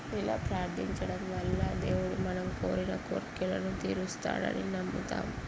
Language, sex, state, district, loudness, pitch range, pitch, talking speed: Telugu, female, Andhra Pradesh, Guntur, -34 LUFS, 90-95 Hz, 95 Hz, 100 wpm